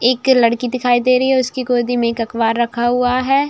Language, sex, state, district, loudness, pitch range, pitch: Hindi, female, Bihar, Saran, -16 LUFS, 235-255 Hz, 245 Hz